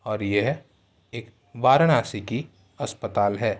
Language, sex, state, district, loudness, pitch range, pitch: Hindi, male, Uttar Pradesh, Ghazipur, -23 LUFS, 100-130 Hz, 115 Hz